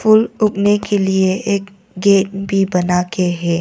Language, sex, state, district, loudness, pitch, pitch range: Hindi, female, Arunachal Pradesh, Longding, -16 LUFS, 195 Hz, 185-205 Hz